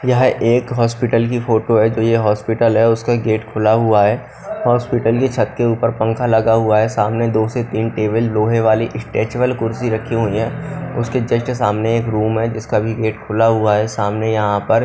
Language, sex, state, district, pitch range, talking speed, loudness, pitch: Hindi, male, Punjab, Kapurthala, 110-120 Hz, 205 wpm, -16 LUFS, 115 Hz